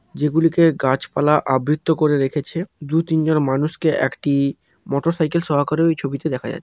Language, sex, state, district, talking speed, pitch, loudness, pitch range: Bengali, male, West Bengal, Paschim Medinipur, 135 wpm, 150 Hz, -19 LUFS, 140-165 Hz